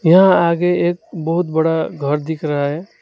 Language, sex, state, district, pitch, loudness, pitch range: Hindi, male, West Bengal, Alipurduar, 165 Hz, -17 LUFS, 160-175 Hz